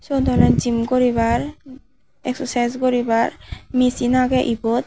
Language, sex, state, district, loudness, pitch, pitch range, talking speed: Chakma, male, Tripura, Unakoti, -19 LUFS, 250 Hz, 240-255 Hz, 110 wpm